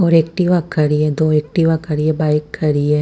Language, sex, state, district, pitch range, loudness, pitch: Hindi, female, Punjab, Fazilka, 150-165 Hz, -16 LUFS, 155 Hz